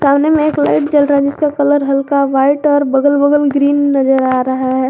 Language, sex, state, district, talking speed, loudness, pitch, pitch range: Hindi, female, Jharkhand, Garhwa, 230 wpm, -12 LUFS, 285 Hz, 270-290 Hz